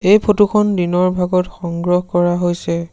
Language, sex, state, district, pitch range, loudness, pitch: Assamese, male, Assam, Sonitpur, 175-195 Hz, -16 LUFS, 180 Hz